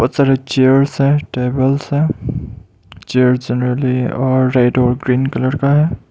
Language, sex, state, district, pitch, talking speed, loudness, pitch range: Hindi, male, Arunachal Pradesh, Lower Dibang Valley, 130 Hz, 130 wpm, -15 LUFS, 125-140 Hz